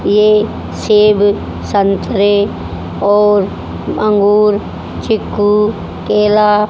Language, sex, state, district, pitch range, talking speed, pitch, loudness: Hindi, female, Haryana, Jhajjar, 205-210 Hz, 65 wpm, 210 Hz, -12 LUFS